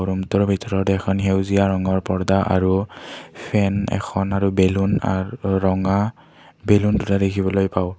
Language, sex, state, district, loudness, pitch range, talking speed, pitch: Assamese, male, Assam, Kamrup Metropolitan, -20 LUFS, 95-100 Hz, 130 wpm, 95 Hz